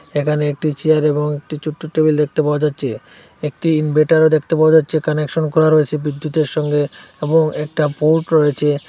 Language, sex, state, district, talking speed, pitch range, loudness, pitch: Bengali, male, Assam, Hailakandi, 160 wpm, 150-155 Hz, -16 LUFS, 150 Hz